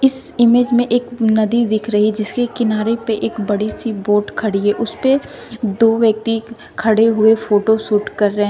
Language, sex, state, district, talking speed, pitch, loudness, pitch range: Hindi, female, Uttar Pradesh, Shamli, 175 wpm, 220 Hz, -16 LUFS, 215-235 Hz